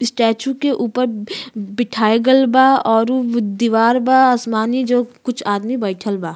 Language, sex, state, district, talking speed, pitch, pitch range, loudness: Bhojpuri, female, Uttar Pradesh, Gorakhpur, 140 wpm, 240 Hz, 220-255 Hz, -16 LUFS